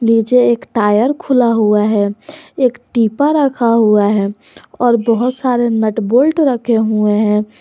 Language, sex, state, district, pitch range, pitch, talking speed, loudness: Hindi, female, Jharkhand, Garhwa, 215-250 Hz, 230 Hz, 150 wpm, -13 LUFS